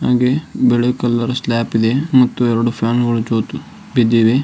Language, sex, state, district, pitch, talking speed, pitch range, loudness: Kannada, male, Karnataka, Dharwad, 120 Hz, 120 wpm, 115-125 Hz, -16 LUFS